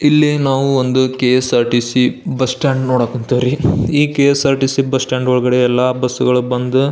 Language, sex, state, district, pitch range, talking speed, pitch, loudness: Kannada, male, Karnataka, Belgaum, 125-135 Hz, 140 wpm, 130 Hz, -14 LUFS